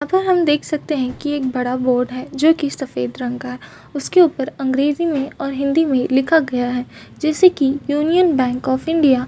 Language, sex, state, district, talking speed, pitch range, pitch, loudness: Hindi, female, Chhattisgarh, Bastar, 205 wpm, 255-310 Hz, 275 Hz, -18 LUFS